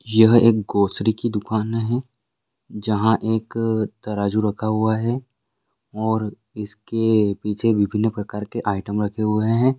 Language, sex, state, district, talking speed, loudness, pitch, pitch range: Hindi, male, Bihar, Vaishali, 140 wpm, -21 LUFS, 110 Hz, 105-115 Hz